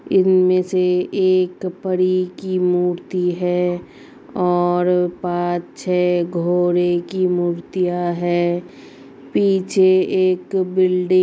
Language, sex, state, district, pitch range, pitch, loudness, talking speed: Hindi, female, Uttar Pradesh, Gorakhpur, 175-185 Hz, 180 Hz, -18 LUFS, 95 wpm